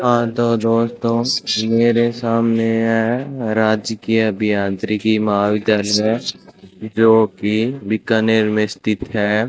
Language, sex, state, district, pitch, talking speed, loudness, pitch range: Hindi, male, Rajasthan, Bikaner, 110 Hz, 90 wpm, -17 LUFS, 105-115 Hz